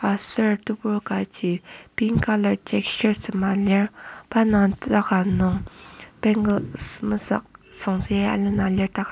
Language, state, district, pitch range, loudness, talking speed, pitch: Ao, Nagaland, Kohima, 190-215 Hz, -19 LUFS, 125 wpm, 200 Hz